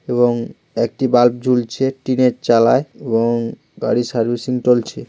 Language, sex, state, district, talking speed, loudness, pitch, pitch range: Bengali, male, West Bengal, Jhargram, 120 wpm, -17 LUFS, 120 Hz, 115-125 Hz